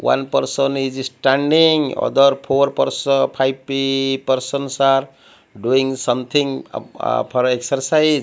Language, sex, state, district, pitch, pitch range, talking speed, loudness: English, male, Odisha, Malkangiri, 135 Hz, 130-140 Hz, 100 wpm, -18 LUFS